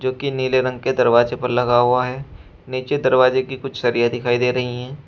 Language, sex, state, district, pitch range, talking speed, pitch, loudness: Hindi, male, Uttar Pradesh, Shamli, 120-130 Hz, 215 wpm, 125 Hz, -19 LUFS